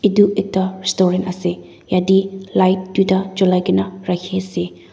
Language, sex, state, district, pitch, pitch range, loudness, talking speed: Nagamese, female, Nagaland, Dimapur, 185 Hz, 180-190 Hz, -18 LUFS, 120 wpm